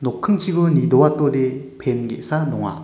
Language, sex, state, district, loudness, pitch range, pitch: Garo, male, Meghalaya, West Garo Hills, -19 LUFS, 130-155 Hz, 140 Hz